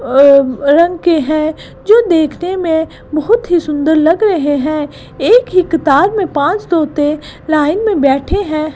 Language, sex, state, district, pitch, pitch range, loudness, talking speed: Hindi, female, Gujarat, Gandhinagar, 315 Hz, 295-365 Hz, -12 LUFS, 160 wpm